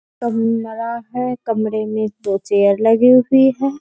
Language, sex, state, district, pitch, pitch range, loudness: Hindi, female, Bihar, Bhagalpur, 230 Hz, 215-250 Hz, -16 LUFS